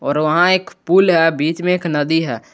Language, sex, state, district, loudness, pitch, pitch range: Hindi, male, Jharkhand, Garhwa, -15 LUFS, 165 Hz, 155-180 Hz